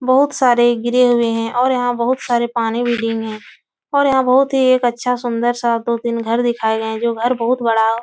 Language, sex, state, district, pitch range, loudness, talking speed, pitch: Hindi, female, Uttar Pradesh, Etah, 230-250 Hz, -16 LUFS, 240 wpm, 240 Hz